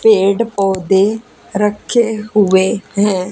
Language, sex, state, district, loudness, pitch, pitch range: Hindi, female, Haryana, Charkhi Dadri, -14 LUFS, 205 Hz, 195-220 Hz